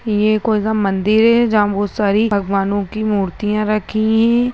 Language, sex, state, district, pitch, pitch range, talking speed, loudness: Hindi, female, Bihar, Jahanabad, 215 Hz, 205-220 Hz, 170 wpm, -16 LUFS